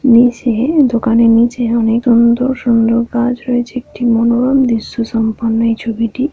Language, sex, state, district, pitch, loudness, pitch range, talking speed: Bengali, female, West Bengal, Paschim Medinipur, 235 Hz, -13 LUFS, 230-245 Hz, 130 wpm